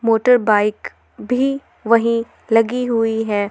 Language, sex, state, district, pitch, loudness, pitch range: Hindi, female, Jharkhand, Garhwa, 230 Hz, -17 LUFS, 225-245 Hz